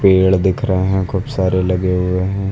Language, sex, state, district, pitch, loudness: Hindi, male, Uttar Pradesh, Lucknow, 95 Hz, -16 LUFS